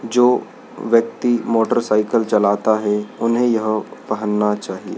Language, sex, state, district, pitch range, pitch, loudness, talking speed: Hindi, male, Madhya Pradesh, Dhar, 105-115 Hz, 110 Hz, -18 LUFS, 110 wpm